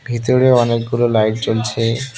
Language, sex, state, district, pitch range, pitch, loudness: Bengali, male, West Bengal, Cooch Behar, 115-120 Hz, 115 Hz, -16 LUFS